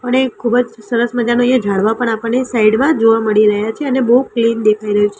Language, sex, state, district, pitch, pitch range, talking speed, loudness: Gujarati, female, Gujarat, Gandhinagar, 230 Hz, 215-245 Hz, 230 wpm, -14 LUFS